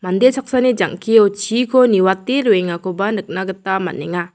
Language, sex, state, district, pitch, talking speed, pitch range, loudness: Garo, female, Meghalaya, South Garo Hills, 195 Hz, 125 wpm, 185-245 Hz, -16 LUFS